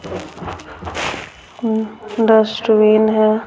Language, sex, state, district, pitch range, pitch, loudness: Hindi, female, Bihar, Patna, 215-220 Hz, 220 Hz, -16 LUFS